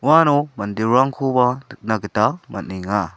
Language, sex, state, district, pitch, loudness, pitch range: Garo, male, Meghalaya, South Garo Hills, 120 Hz, -19 LUFS, 105-135 Hz